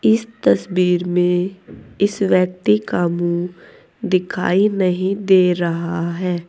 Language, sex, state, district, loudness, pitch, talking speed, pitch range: Hindi, female, Uttar Pradesh, Saharanpur, -18 LUFS, 180 Hz, 110 wpm, 175-190 Hz